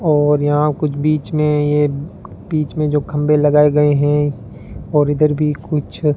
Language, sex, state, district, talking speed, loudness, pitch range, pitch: Hindi, male, Rajasthan, Bikaner, 175 wpm, -16 LUFS, 145-150 Hz, 150 Hz